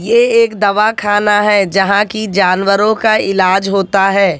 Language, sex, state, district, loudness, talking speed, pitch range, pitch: Hindi, female, Haryana, Jhajjar, -12 LUFS, 165 wpm, 195-215 Hz, 200 Hz